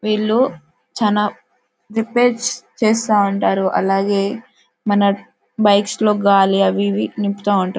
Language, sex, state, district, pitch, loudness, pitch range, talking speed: Telugu, female, Telangana, Karimnagar, 205 Hz, -17 LUFS, 200-220 Hz, 100 wpm